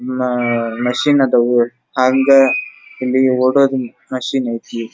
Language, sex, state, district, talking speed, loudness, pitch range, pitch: Kannada, male, Karnataka, Dharwad, 85 wpm, -15 LUFS, 120-130 Hz, 125 Hz